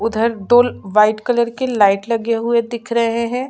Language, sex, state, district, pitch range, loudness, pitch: Hindi, female, Chhattisgarh, Sukma, 220-240 Hz, -16 LUFS, 235 Hz